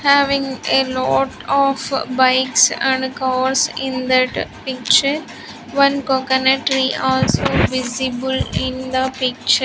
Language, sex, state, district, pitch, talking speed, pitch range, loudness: English, female, Andhra Pradesh, Sri Satya Sai, 260 Hz, 110 wpm, 255-270 Hz, -17 LUFS